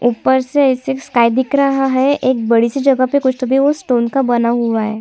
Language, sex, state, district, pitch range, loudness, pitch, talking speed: Hindi, female, Chhattisgarh, Kabirdham, 235-270 Hz, -14 LUFS, 260 Hz, 250 wpm